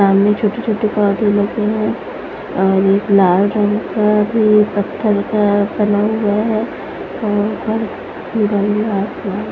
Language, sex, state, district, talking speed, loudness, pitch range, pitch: Hindi, female, Punjab, Fazilka, 115 wpm, -16 LUFS, 205-215 Hz, 210 Hz